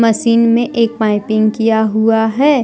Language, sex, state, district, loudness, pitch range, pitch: Hindi, male, Jharkhand, Deoghar, -13 LUFS, 220-230 Hz, 225 Hz